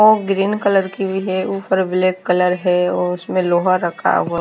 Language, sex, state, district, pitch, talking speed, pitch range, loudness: Hindi, female, Himachal Pradesh, Shimla, 185 Hz, 215 wpm, 180-195 Hz, -17 LUFS